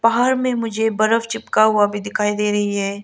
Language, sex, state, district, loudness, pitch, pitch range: Hindi, female, Arunachal Pradesh, Lower Dibang Valley, -18 LUFS, 215 Hz, 205-230 Hz